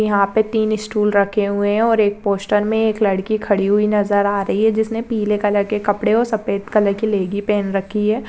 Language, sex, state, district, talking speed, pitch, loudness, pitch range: Hindi, female, Maharashtra, Dhule, 240 wpm, 210 Hz, -18 LUFS, 205-220 Hz